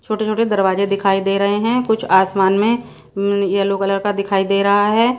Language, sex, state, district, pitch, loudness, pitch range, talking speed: Hindi, female, Odisha, Sambalpur, 200 Hz, -17 LUFS, 195-215 Hz, 195 wpm